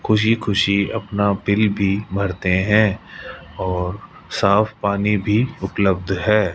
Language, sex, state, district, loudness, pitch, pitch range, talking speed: Hindi, male, Rajasthan, Jaipur, -19 LUFS, 100 Hz, 95-105 Hz, 120 wpm